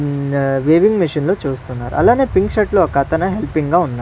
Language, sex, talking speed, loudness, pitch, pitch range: Telugu, male, 210 wpm, -16 LUFS, 155 Hz, 140-190 Hz